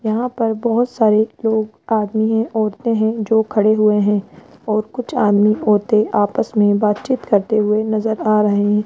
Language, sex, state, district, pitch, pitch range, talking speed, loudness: Hindi, female, Rajasthan, Jaipur, 215 Hz, 210-225 Hz, 175 wpm, -17 LUFS